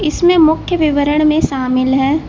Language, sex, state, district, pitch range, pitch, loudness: Hindi, female, Uttar Pradesh, Lucknow, 270-315 Hz, 305 Hz, -13 LUFS